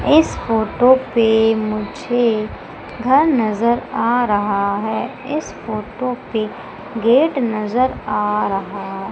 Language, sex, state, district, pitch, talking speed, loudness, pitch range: Hindi, female, Madhya Pradesh, Umaria, 225 Hz, 105 wpm, -18 LUFS, 215-250 Hz